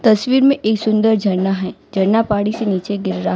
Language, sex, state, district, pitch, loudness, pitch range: Hindi, female, Gujarat, Valsad, 210 Hz, -16 LUFS, 195-220 Hz